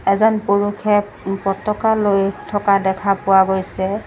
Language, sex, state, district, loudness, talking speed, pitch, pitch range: Assamese, female, Assam, Sonitpur, -17 LUFS, 120 wpm, 200 Hz, 195-205 Hz